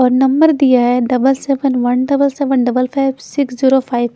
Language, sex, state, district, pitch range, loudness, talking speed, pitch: Hindi, female, Chandigarh, Chandigarh, 250-275 Hz, -14 LUFS, 215 wpm, 265 Hz